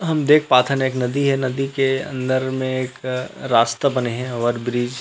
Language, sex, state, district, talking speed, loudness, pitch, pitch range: Chhattisgarhi, male, Chhattisgarh, Rajnandgaon, 215 wpm, -20 LUFS, 130 Hz, 125-135 Hz